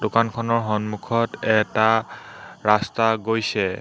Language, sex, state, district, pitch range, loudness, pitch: Assamese, male, Assam, Hailakandi, 105-115 Hz, -21 LUFS, 110 Hz